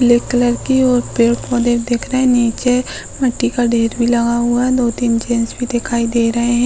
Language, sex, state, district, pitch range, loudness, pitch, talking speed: Hindi, female, Uttar Pradesh, Hamirpur, 235-245 Hz, -15 LUFS, 240 Hz, 200 wpm